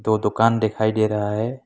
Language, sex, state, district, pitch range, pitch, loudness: Hindi, male, Assam, Kamrup Metropolitan, 110-115 Hz, 110 Hz, -20 LUFS